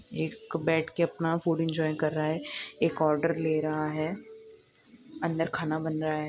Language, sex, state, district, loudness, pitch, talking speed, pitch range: Hindi, female, Andhra Pradesh, Guntur, -30 LUFS, 160 Hz, 180 wpm, 155-165 Hz